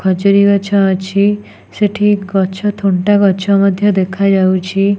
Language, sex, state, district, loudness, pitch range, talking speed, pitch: Odia, female, Odisha, Nuapada, -13 LUFS, 190-200 Hz, 110 wpm, 195 Hz